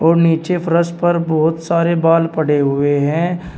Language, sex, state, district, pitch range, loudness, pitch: Hindi, male, Uttar Pradesh, Shamli, 160-170 Hz, -15 LUFS, 165 Hz